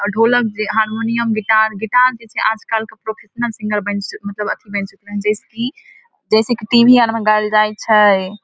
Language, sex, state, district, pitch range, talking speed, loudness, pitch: Maithili, female, Bihar, Samastipur, 210-230 Hz, 180 wpm, -16 LUFS, 220 Hz